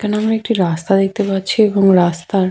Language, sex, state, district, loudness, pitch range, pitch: Bengali, female, West Bengal, Paschim Medinipur, -15 LUFS, 185-210 Hz, 195 Hz